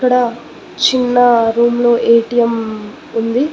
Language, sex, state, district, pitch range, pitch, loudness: Telugu, female, Telangana, Mahabubabad, 230-245 Hz, 240 Hz, -13 LUFS